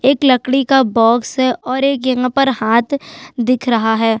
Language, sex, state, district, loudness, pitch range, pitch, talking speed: Hindi, female, Chhattisgarh, Sukma, -15 LUFS, 235-270 Hz, 255 Hz, 185 wpm